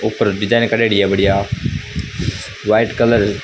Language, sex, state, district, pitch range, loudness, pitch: Rajasthani, male, Rajasthan, Churu, 100-115 Hz, -16 LUFS, 110 Hz